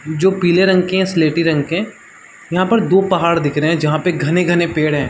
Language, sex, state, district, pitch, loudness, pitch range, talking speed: Hindi, male, Chhattisgarh, Sarguja, 175 Hz, -15 LUFS, 155-185 Hz, 245 wpm